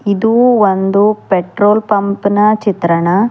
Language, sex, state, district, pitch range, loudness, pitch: Kannada, female, Karnataka, Bidar, 195-215 Hz, -12 LUFS, 205 Hz